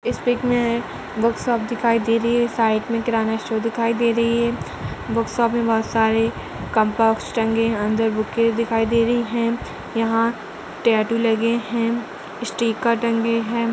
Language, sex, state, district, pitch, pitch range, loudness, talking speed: Hindi, female, Uttar Pradesh, Budaun, 230 Hz, 225-235 Hz, -21 LUFS, 155 wpm